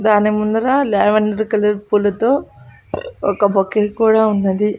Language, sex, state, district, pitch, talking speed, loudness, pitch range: Telugu, female, Andhra Pradesh, Annamaya, 210 Hz, 115 wpm, -16 LUFS, 205-220 Hz